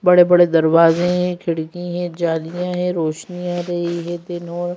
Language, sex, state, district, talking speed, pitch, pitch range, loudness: Hindi, female, Madhya Pradesh, Bhopal, 165 wpm, 175 Hz, 165-180 Hz, -18 LUFS